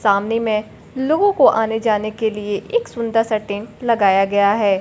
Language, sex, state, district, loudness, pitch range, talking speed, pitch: Hindi, female, Bihar, Kaimur, -18 LUFS, 205-230 Hz, 185 wpm, 215 Hz